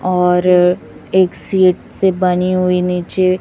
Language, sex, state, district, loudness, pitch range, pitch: Hindi, female, Chhattisgarh, Raipur, -14 LUFS, 180-185 Hz, 180 Hz